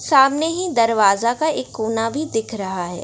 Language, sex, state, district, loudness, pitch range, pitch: Hindi, female, Bihar, Darbhanga, -19 LUFS, 220-300 Hz, 230 Hz